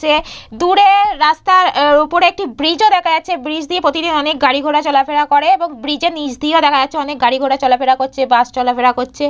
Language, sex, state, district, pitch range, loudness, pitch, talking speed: Bengali, female, West Bengal, Purulia, 270-340 Hz, -13 LUFS, 300 Hz, 195 wpm